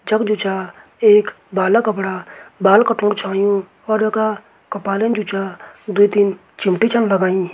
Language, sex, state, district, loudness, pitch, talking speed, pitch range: Garhwali, male, Uttarakhand, Tehri Garhwal, -17 LUFS, 205 Hz, 165 wpm, 195-215 Hz